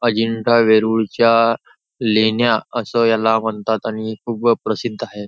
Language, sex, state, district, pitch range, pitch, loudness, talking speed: Marathi, male, Maharashtra, Nagpur, 110-115 Hz, 115 Hz, -17 LUFS, 115 wpm